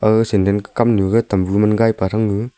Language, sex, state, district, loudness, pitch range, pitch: Wancho, male, Arunachal Pradesh, Longding, -16 LUFS, 100-115 Hz, 105 Hz